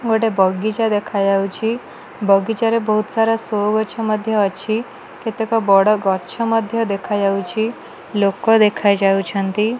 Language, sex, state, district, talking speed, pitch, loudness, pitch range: Odia, female, Odisha, Malkangiri, 120 wpm, 215 Hz, -18 LUFS, 200-225 Hz